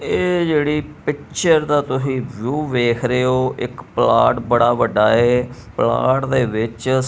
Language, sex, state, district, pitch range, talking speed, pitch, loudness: Punjabi, male, Punjab, Kapurthala, 120-145 Hz, 145 wpm, 130 Hz, -18 LUFS